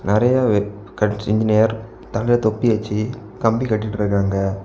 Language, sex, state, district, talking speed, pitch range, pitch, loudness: Tamil, male, Tamil Nadu, Kanyakumari, 115 wpm, 105-115 Hz, 110 Hz, -19 LUFS